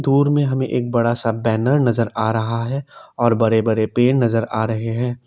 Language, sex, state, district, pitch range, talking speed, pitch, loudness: Hindi, male, Assam, Kamrup Metropolitan, 115-125 Hz, 215 wpm, 115 Hz, -19 LUFS